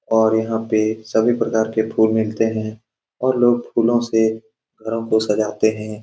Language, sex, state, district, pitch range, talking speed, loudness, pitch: Hindi, male, Bihar, Saran, 110-115 Hz, 170 wpm, -19 LUFS, 110 Hz